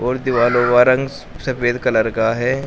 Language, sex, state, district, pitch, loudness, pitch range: Hindi, male, Uttar Pradesh, Shamli, 125 Hz, -16 LUFS, 120-130 Hz